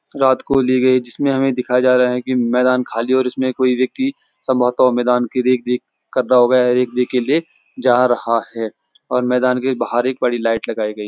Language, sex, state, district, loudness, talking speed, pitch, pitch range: Hindi, male, Uttarakhand, Uttarkashi, -17 LUFS, 225 wpm, 125 Hz, 125-130 Hz